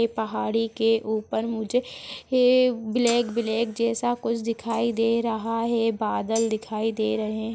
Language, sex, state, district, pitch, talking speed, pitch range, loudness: Hindi, female, Chhattisgarh, Jashpur, 225 Hz, 150 wpm, 220-235 Hz, -25 LUFS